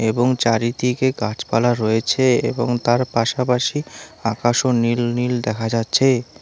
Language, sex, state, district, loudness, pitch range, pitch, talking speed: Bengali, male, West Bengal, Alipurduar, -19 LUFS, 115-125 Hz, 120 Hz, 110 wpm